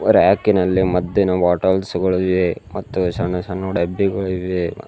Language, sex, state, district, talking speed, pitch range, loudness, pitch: Kannada, male, Karnataka, Bidar, 125 wpm, 90-95 Hz, -18 LUFS, 90 Hz